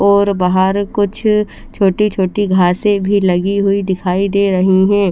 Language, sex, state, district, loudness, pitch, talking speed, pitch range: Hindi, female, Chandigarh, Chandigarh, -14 LUFS, 200 Hz, 150 wpm, 190-200 Hz